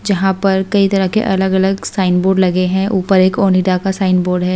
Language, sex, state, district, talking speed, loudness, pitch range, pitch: Hindi, female, Delhi, New Delhi, 225 wpm, -14 LUFS, 185-195 Hz, 190 Hz